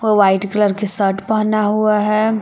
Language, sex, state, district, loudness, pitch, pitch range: Hindi, female, Jharkhand, Palamu, -16 LUFS, 210 Hz, 200-215 Hz